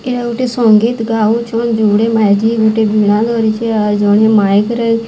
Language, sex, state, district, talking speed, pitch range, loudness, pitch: Odia, female, Odisha, Sambalpur, 165 wpm, 215-230 Hz, -12 LUFS, 225 Hz